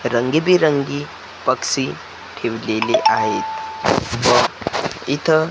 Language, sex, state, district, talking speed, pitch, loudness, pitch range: Marathi, male, Maharashtra, Gondia, 65 wpm, 150 Hz, -19 LUFS, 130-180 Hz